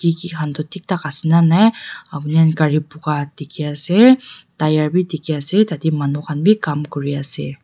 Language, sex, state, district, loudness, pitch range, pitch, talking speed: Nagamese, female, Nagaland, Dimapur, -17 LUFS, 150-175 Hz, 155 Hz, 190 wpm